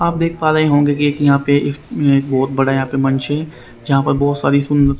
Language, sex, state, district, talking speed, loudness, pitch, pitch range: Hindi, male, Haryana, Rohtak, 250 wpm, -15 LUFS, 140 Hz, 135-145 Hz